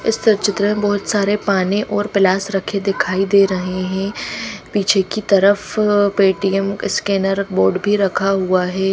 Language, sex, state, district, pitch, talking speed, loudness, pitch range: Hindi, female, Haryana, Rohtak, 195 Hz, 155 wpm, -17 LUFS, 195-205 Hz